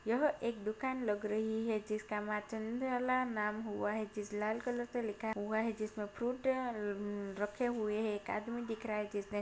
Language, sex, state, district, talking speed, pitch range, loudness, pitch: Hindi, female, Maharashtra, Sindhudurg, 195 wpm, 210-235 Hz, -38 LUFS, 215 Hz